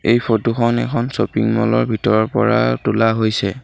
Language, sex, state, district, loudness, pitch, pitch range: Assamese, male, Assam, Sonitpur, -17 LUFS, 115 Hz, 110-120 Hz